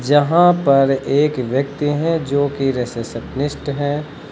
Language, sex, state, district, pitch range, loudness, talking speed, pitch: Hindi, male, Uttar Pradesh, Lucknow, 135-145 Hz, -18 LUFS, 125 wpm, 140 Hz